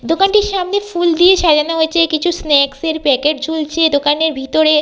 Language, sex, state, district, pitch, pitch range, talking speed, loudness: Bengali, female, West Bengal, Jhargram, 320 Hz, 300-345 Hz, 160 wpm, -14 LUFS